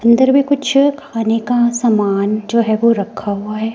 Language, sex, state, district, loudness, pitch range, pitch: Hindi, female, Himachal Pradesh, Shimla, -15 LUFS, 215-255 Hz, 230 Hz